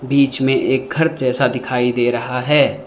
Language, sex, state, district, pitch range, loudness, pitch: Hindi, male, Arunachal Pradesh, Lower Dibang Valley, 125-140 Hz, -17 LUFS, 130 Hz